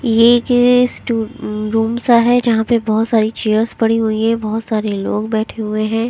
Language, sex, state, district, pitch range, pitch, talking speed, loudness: Hindi, female, Himachal Pradesh, Shimla, 220-235 Hz, 225 Hz, 195 wpm, -15 LUFS